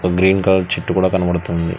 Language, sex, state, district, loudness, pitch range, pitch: Telugu, male, Telangana, Hyderabad, -16 LUFS, 90-95 Hz, 90 Hz